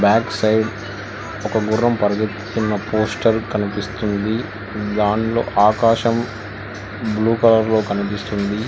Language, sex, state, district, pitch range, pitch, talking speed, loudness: Telugu, male, Telangana, Hyderabad, 105-110 Hz, 110 Hz, 85 wpm, -19 LUFS